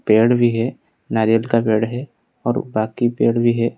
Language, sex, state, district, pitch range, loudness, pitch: Hindi, male, Odisha, Khordha, 110-120 Hz, -18 LUFS, 115 Hz